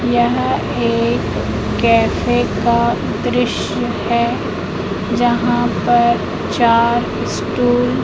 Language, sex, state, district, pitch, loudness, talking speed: Hindi, female, Madhya Pradesh, Katni, 230 Hz, -16 LUFS, 80 wpm